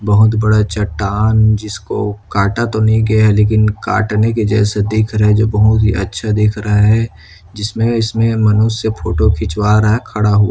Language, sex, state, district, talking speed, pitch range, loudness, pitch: Hindi, male, Chhattisgarh, Kabirdham, 190 wpm, 105-110 Hz, -14 LUFS, 105 Hz